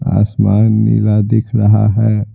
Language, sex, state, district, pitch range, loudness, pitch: Hindi, male, Bihar, Patna, 105-110 Hz, -12 LUFS, 105 Hz